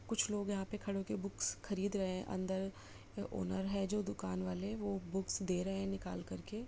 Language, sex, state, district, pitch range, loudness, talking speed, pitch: Hindi, female, Bihar, Jamui, 185-200 Hz, -40 LUFS, 205 wpm, 195 Hz